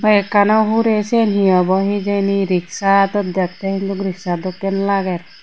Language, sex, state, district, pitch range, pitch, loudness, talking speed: Chakma, female, Tripura, Unakoti, 185-205 Hz, 195 Hz, -17 LUFS, 155 wpm